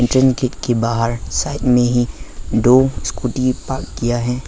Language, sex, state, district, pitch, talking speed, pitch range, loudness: Hindi, male, Arunachal Pradesh, Lower Dibang Valley, 120 Hz, 160 wpm, 115-125 Hz, -17 LUFS